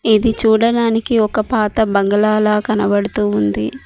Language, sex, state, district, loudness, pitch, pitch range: Telugu, female, Telangana, Mahabubabad, -15 LUFS, 215 Hz, 205-225 Hz